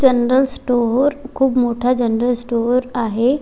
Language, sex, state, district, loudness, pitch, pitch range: Marathi, female, Maharashtra, Chandrapur, -17 LUFS, 250 Hz, 240-265 Hz